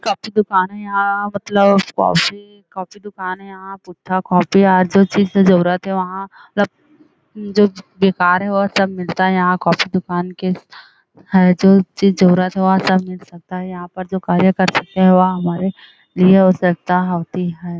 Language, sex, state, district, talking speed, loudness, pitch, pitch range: Hindi, female, Chhattisgarh, Bilaspur, 170 wpm, -15 LUFS, 185 Hz, 180-195 Hz